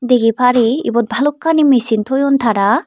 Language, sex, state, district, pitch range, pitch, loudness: Chakma, female, Tripura, Dhalai, 230-275 Hz, 250 Hz, -14 LUFS